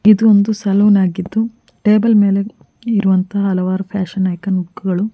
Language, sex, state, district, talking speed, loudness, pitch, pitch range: Kannada, female, Karnataka, Mysore, 115 wpm, -15 LUFS, 200 Hz, 190-210 Hz